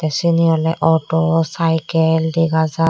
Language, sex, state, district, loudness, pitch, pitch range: Chakma, female, Tripura, Dhalai, -16 LUFS, 160 Hz, 160-165 Hz